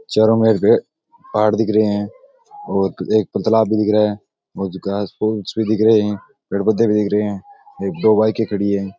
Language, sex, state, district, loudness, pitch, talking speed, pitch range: Rajasthani, male, Rajasthan, Nagaur, -17 LUFS, 110 Hz, 205 wpm, 100-110 Hz